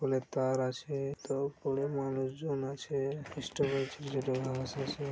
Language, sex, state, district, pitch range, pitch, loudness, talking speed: Bengali, male, West Bengal, Malda, 130-140 Hz, 135 Hz, -35 LUFS, 115 wpm